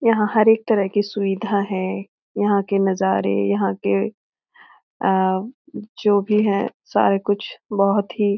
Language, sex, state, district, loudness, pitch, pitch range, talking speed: Hindi, female, Bihar, Jahanabad, -20 LUFS, 200 Hz, 190-210 Hz, 150 wpm